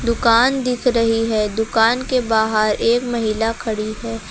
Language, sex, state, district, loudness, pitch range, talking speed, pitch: Hindi, female, Uttar Pradesh, Lucknow, -18 LUFS, 220-240 Hz, 155 wpm, 225 Hz